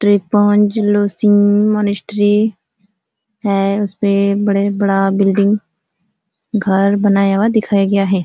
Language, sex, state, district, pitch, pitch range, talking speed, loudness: Hindi, female, Uttar Pradesh, Ghazipur, 205 Hz, 195-210 Hz, 100 wpm, -14 LUFS